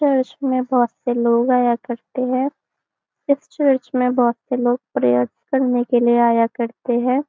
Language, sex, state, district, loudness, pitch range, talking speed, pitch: Hindi, female, Maharashtra, Nagpur, -19 LUFS, 240-260 Hz, 175 wpm, 245 Hz